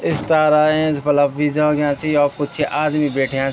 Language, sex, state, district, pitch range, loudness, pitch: Garhwali, male, Uttarakhand, Tehri Garhwal, 145-150 Hz, -17 LUFS, 150 Hz